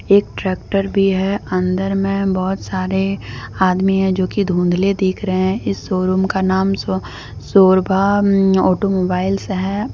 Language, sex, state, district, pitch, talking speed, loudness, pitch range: Hindi, female, Jharkhand, Deoghar, 190 Hz, 140 wpm, -17 LUFS, 185-195 Hz